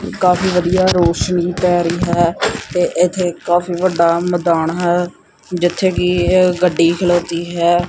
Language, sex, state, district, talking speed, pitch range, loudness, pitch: Punjabi, male, Punjab, Kapurthala, 135 wpm, 170-180 Hz, -15 LUFS, 175 Hz